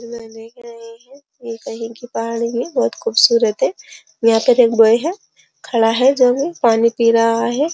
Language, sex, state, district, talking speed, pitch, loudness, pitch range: Hindi, female, Uttar Pradesh, Jyotiba Phule Nagar, 165 wpm, 235 Hz, -15 LUFS, 230-280 Hz